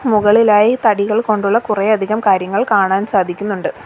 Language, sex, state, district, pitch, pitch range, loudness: Malayalam, female, Kerala, Kollam, 210 Hz, 200-220 Hz, -14 LUFS